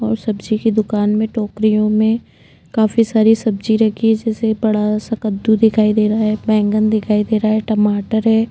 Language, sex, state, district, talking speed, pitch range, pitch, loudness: Hindi, female, Uttar Pradesh, Budaun, 190 wpm, 215-220 Hz, 220 Hz, -16 LUFS